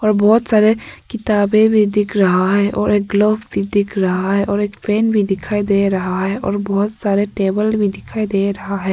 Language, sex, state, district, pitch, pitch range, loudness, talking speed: Hindi, female, Arunachal Pradesh, Papum Pare, 205 Hz, 195-210 Hz, -16 LUFS, 215 wpm